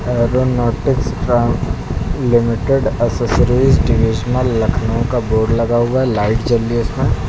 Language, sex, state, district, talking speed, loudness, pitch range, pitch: Hindi, male, Uttar Pradesh, Lucknow, 115 wpm, -16 LUFS, 115-125 Hz, 120 Hz